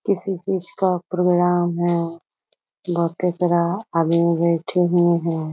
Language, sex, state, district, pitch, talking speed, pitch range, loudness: Hindi, female, Bihar, Muzaffarpur, 175 Hz, 130 wpm, 170-180 Hz, -20 LUFS